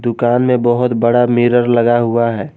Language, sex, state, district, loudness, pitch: Hindi, male, Jharkhand, Garhwa, -13 LUFS, 120 Hz